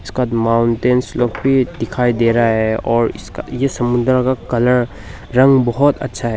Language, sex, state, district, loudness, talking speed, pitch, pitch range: Hindi, male, Nagaland, Dimapur, -16 LUFS, 170 wpm, 120 Hz, 115-130 Hz